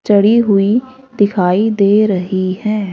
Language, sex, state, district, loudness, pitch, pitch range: Hindi, female, Haryana, Rohtak, -13 LUFS, 205 Hz, 195-220 Hz